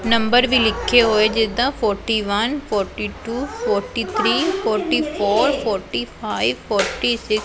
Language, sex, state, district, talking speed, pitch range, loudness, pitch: Punjabi, female, Punjab, Pathankot, 145 wpm, 215-265 Hz, -19 LUFS, 230 Hz